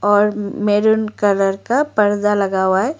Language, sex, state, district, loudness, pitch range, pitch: Hindi, female, Arunachal Pradesh, Lower Dibang Valley, -17 LUFS, 200-215 Hz, 205 Hz